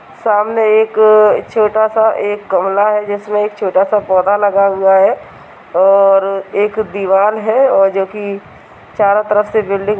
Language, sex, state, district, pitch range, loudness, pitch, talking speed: Hindi, female, Uttar Pradesh, Budaun, 195-215 Hz, -12 LUFS, 205 Hz, 145 wpm